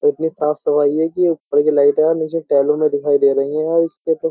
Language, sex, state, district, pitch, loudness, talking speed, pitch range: Hindi, male, Uttar Pradesh, Jyotiba Phule Nagar, 155 Hz, -16 LUFS, 280 wpm, 145-165 Hz